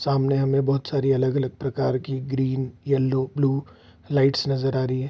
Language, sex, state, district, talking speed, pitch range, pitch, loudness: Hindi, male, Bihar, Vaishali, 175 wpm, 130-140 Hz, 135 Hz, -23 LUFS